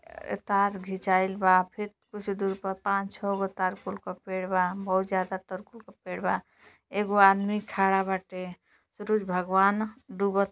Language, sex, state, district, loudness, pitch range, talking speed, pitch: Bhojpuri, female, Uttar Pradesh, Gorakhpur, -28 LUFS, 190-205 Hz, 160 wpm, 195 Hz